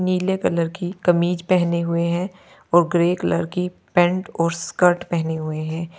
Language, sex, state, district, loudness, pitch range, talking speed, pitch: Hindi, female, Uttar Pradesh, Lalitpur, -21 LUFS, 170-180 Hz, 170 wpm, 175 Hz